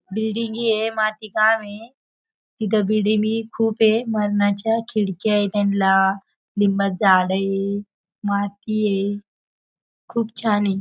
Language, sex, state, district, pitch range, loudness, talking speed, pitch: Marathi, female, Maharashtra, Aurangabad, 200-220 Hz, -20 LUFS, 115 wpm, 210 Hz